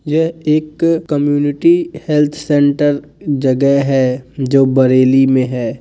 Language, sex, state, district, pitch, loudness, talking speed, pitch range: Hindi, male, Bihar, Kishanganj, 145 Hz, -14 LUFS, 115 wpm, 135-155 Hz